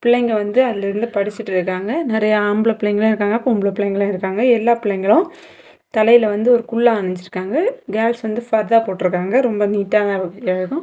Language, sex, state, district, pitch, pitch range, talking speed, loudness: Tamil, female, Tamil Nadu, Kanyakumari, 215 Hz, 200-235 Hz, 145 wpm, -17 LUFS